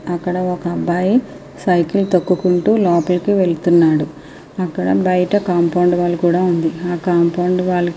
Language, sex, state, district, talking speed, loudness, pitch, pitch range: Telugu, female, Andhra Pradesh, Srikakulam, 135 wpm, -16 LUFS, 175 Hz, 170-180 Hz